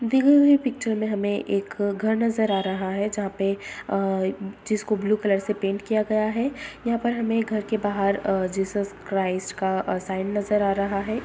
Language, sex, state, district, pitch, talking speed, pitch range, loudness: Hindi, female, Bihar, Lakhisarai, 205 Hz, 205 wpm, 195-220 Hz, -24 LUFS